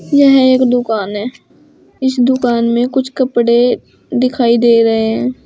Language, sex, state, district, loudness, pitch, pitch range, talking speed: Hindi, female, Uttar Pradesh, Saharanpur, -13 LUFS, 245 Hz, 235-260 Hz, 145 wpm